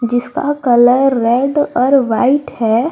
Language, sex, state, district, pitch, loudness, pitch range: Hindi, female, Jharkhand, Garhwa, 250 Hz, -13 LUFS, 240-275 Hz